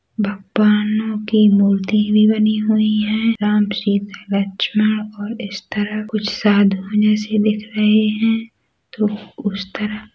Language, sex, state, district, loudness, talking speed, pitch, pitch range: Hindi, female, Chhattisgarh, Rajnandgaon, -17 LUFS, 140 wpm, 210 Hz, 205-215 Hz